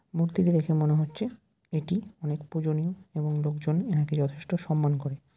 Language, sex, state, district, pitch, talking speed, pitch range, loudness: Bengali, male, West Bengal, Jalpaiguri, 155 Hz, 145 wpm, 150-175 Hz, -28 LUFS